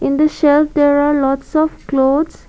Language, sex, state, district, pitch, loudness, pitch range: English, female, Assam, Kamrup Metropolitan, 290 Hz, -14 LUFS, 280-305 Hz